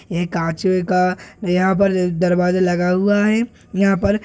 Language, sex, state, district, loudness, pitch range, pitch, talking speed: Hindi, male, Bihar, Purnia, -18 LUFS, 180-200 Hz, 185 Hz, 170 wpm